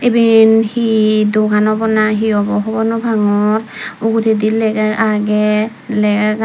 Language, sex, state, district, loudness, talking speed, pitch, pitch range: Chakma, female, Tripura, Dhalai, -13 LUFS, 110 wpm, 215 Hz, 210-225 Hz